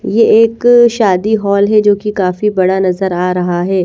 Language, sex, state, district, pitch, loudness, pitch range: Hindi, female, Haryana, Rohtak, 200 Hz, -11 LUFS, 185-220 Hz